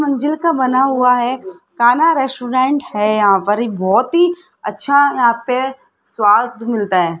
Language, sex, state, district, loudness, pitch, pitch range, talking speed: Hindi, female, Rajasthan, Jaipur, -15 LUFS, 250 Hz, 215-280 Hz, 160 wpm